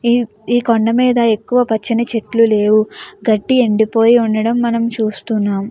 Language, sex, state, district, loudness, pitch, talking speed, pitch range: Telugu, female, Andhra Pradesh, Guntur, -15 LUFS, 225 Hz, 135 wpm, 215-235 Hz